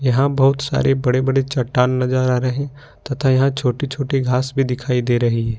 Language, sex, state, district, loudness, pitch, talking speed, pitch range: Hindi, male, Jharkhand, Ranchi, -18 LUFS, 130 Hz, 205 wpm, 125-135 Hz